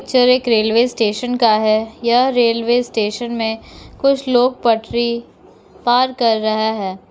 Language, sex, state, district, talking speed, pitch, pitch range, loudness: Hindi, female, Bihar, Lakhisarai, 145 wpm, 235 Hz, 220-245 Hz, -16 LUFS